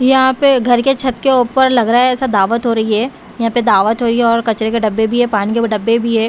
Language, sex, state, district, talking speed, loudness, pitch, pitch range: Hindi, female, Bihar, West Champaran, 305 wpm, -13 LUFS, 235 Hz, 225-255 Hz